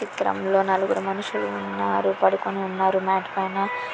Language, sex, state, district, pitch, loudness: Telugu, female, Telangana, Nalgonda, 190 Hz, -24 LUFS